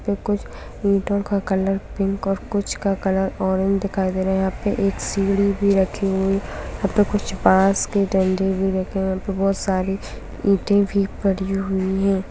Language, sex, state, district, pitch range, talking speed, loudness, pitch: Hindi, female, Bihar, Samastipur, 190-200 Hz, 195 wpm, -21 LUFS, 195 Hz